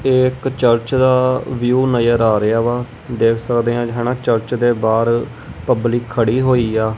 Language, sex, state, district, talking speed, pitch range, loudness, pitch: Punjabi, male, Punjab, Kapurthala, 180 wpm, 115-125 Hz, -16 LUFS, 120 Hz